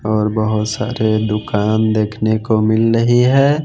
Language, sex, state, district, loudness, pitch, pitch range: Hindi, male, Bihar, West Champaran, -15 LUFS, 110 Hz, 110-115 Hz